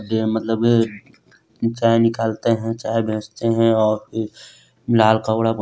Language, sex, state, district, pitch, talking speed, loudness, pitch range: Hindi, male, Chhattisgarh, Sarguja, 115 Hz, 130 wpm, -19 LUFS, 110-115 Hz